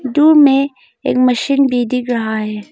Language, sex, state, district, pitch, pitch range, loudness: Hindi, female, Arunachal Pradesh, Longding, 250 Hz, 235-275 Hz, -14 LUFS